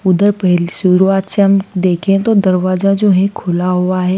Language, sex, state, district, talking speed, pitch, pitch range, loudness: Hindi, female, Madhya Pradesh, Dhar, 185 wpm, 185 Hz, 180-195 Hz, -13 LUFS